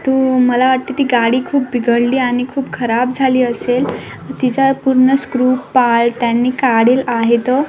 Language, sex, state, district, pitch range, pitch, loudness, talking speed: Marathi, female, Maharashtra, Washim, 245-265 Hz, 255 Hz, -14 LUFS, 155 wpm